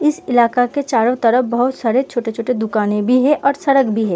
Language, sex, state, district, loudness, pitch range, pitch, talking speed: Hindi, female, Uttar Pradesh, Budaun, -16 LUFS, 230-265 Hz, 245 Hz, 215 wpm